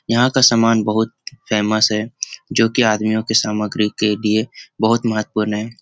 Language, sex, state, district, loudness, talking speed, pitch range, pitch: Hindi, male, Bihar, Jamui, -17 LUFS, 165 wpm, 105-115 Hz, 110 Hz